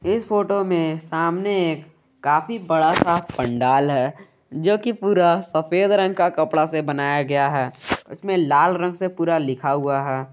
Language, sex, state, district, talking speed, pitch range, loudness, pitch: Hindi, male, Jharkhand, Garhwa, 170 wpm, 140-185 Hz, -20 LUFS, 160 Hz